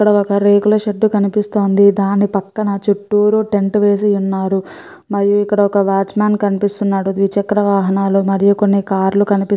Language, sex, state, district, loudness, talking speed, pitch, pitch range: Telugu, female, Andhra Pradesh, Guntur, -14 LUFS, 145 wpm, 200 Hz, 195-205 Hz